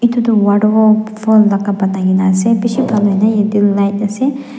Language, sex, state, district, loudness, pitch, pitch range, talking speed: Nagamese, female, Nagaland, Dimapur, -13 LUFS, 210 Hz, 200-225 Hz, 115 wpm